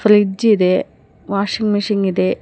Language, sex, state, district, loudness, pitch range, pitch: Kannada, female, Karnataka, Koppal, -16 LUFS, 190-210 Hz, 205 Hz